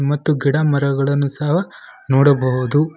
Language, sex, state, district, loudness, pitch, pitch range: Kannada, male, Karnataka, Koppal, -17 LUFS, 140 Hz, 140-150 Hz